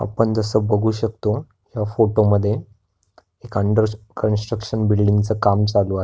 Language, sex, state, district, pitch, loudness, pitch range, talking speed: Marathi, male, Maharashtra, Pune, 105 Hz, -20 LUFS, 105-110 Hz, 150 wpm